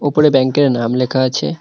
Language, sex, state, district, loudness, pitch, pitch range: Bengali, male, West Bengal, Cooch Behar, -14 LUFS, 130 Hz, 125-145 Hz